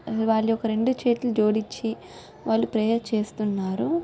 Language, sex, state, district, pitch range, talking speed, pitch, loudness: Telugu, female, Telangana, Nalgonda, 215-235 Hz, 120 wpm, 225 Hz, -25 LUFS